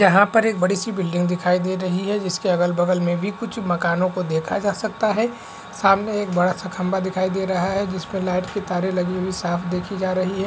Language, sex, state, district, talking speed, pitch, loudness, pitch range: Hindi, male, Maharashtra, Chandrapur, 240 wpm, 185 Hz, -21 LUFS, 180-200 Hz